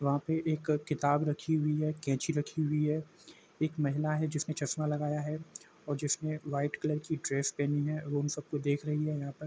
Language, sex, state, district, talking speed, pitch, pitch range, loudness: Hindi, male, Uttar Pradesh, Jalaun, 235 wpm, 150 Hz, 145-155 Hz, -33 LUFS